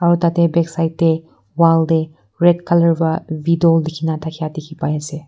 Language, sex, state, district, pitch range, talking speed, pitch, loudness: Nagamese, female, Nagaland, Kohima, 160-170 Hz, 205 wpm, 165 Hz, -17 LUFS